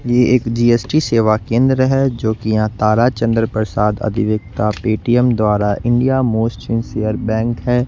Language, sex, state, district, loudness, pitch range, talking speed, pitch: Hindi, male, Bihar, West Champaran, -16 LUFS, 110-125 Hz, 145 wpm, 115 Hz